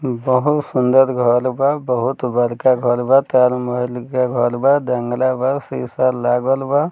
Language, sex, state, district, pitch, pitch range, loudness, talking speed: Bhojpuri, male, Bihar, Muzaffarpur, 125 Hz, 125-135 Hz, -17 LUFS, 155 wpm